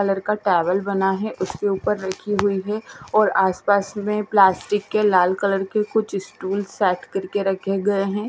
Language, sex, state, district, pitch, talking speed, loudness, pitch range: Hindi, female, Bihar, West Champaran, 195 Hz, 190 wpm, -21 LUFS, 190-210 Hz